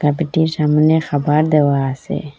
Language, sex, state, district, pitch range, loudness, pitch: Bengali, female, Assam, Hailakandi, 145-160 Hz, -16 LUFS, 150 Hz